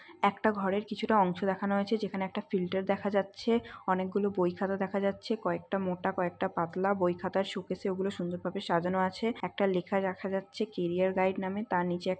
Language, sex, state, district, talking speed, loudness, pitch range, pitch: Bengali, female, West Bengal, North 24 Parganas, 185 wpm, -31 LUFS, 185-200 Hz, 195 Hz